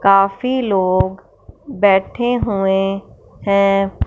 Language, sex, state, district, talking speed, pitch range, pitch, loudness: Hindi, female, Punjab, Fazilka, 75 wpm, 195-205 Hz, 195 Hz, -16 LUFS